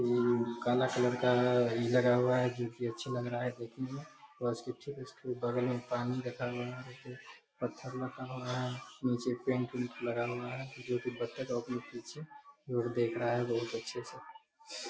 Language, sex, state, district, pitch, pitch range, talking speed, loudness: Hindi, male, Bihar, Darbhanga, 125 Hz, 120-130 Hz, 205 wpm, -35 LUFS